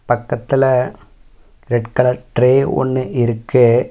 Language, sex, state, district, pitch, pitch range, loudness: Tamil, male, Tamil Nadu, Namakkal, 125 Hz, 120-130 Hz, -16 LUFS